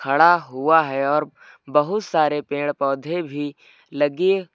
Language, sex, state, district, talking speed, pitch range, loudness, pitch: Hindi, male, Uttar Pradesh, Lucknow, 130 wpm, 145-165 Hz, -20 LUFS, 150 Hz